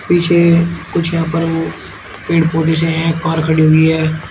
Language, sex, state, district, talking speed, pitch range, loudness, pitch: Hindi, male, Uttar Pradesh, Shamli, 180 wpm, 160-170 Hz, -14 LUFS, 165 Hz